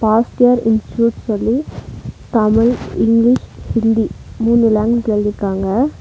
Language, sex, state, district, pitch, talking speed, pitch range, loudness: Tamil, female, Tamil Nadu, Nilgiris, 225 Hz, 90 wpm, 215-235 Hz, -15 LUFS